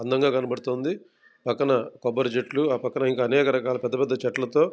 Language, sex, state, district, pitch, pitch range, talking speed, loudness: Telugu, male, Andhra Pradesh, Krishna, 130 Hz, 125-135 Hz, 165 wpm, -25 LUFS